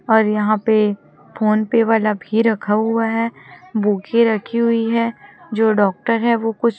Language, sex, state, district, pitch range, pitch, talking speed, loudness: Hindi, female, Chhattisgarh, Raipur, 210-230 Hz, 225 Hz, 170 wpm, -18 LUFS